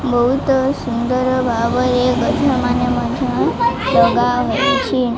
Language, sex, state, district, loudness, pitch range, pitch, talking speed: Odia, female, Odisha, Malkangiri, -16 LUFS, 245-265 Hz, 250 Hz, 80 wpm